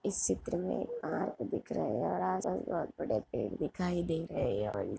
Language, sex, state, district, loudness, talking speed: Hindi, female, Jharkhand, Jamtara, -35 LUFS, 190 wpm